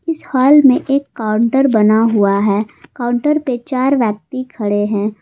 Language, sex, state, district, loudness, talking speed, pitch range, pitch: Hindi, female, Jharkhand, Palamu, -14 LUFS, 160 wpm, 210-270 Hz, 240 Hz